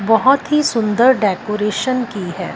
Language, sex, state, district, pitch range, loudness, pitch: Hindi, female, Punjab, Fazilka, 210-260 Hz, -16 LUFS, 225 Hz